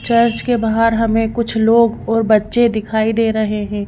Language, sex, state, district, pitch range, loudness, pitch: Hindi, female, Madhya Pradesh, Bhopal, 220-230 Hz, -15 LUFS, 225 Hz